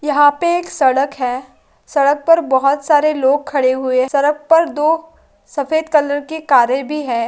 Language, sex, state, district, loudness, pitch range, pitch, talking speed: Hindi, female, Andhra Pradesh, Krishna, -15 LUFS, 265-305 Hz, 290 Hz, 175 wpm